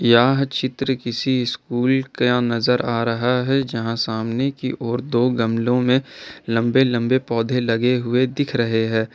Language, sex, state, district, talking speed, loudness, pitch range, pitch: Hindi, male, Jharkhand, Ranchi, 155 wpm, -20 LUFS, 115-130 Hz, 125 Hz